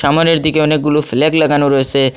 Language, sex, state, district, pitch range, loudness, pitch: Bengali, male, Assam, Hailakandi, 140-155 Hz, -13 LUFS, 150 Hz